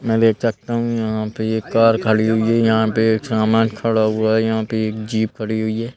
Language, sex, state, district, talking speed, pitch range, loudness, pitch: Hindi, male, Madhya Pradesh, Bhopal, 250 wpm, 110-115 Hz, -18 LUFS, 110 Hz